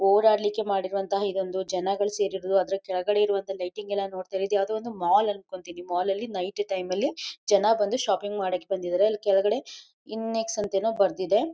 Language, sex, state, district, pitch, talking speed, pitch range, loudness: Kannada, female, Karnataka, Mysore, 195 Hz, 155 wpm, 190-210 Hz, -26 LUFS